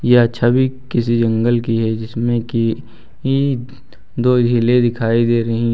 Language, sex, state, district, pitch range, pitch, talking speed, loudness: Hindi, male, Uttar Pradesh, Lucknow, 115-125 Hz, 120 Hz, 165 wpm, -16 LUFS